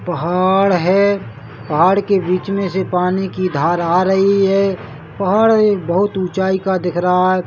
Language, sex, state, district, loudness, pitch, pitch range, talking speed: Hindi, male, Chhattisgarh, Bilaspur, -15 LUFS, 185 Hz, 175-195 Hz, 170 wpm